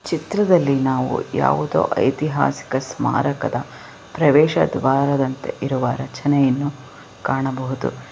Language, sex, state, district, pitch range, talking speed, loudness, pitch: Kannada, female, Karnataka, Belgaum, 130-145 Hz, 75 wpm, -20 LUFS, 135 Hz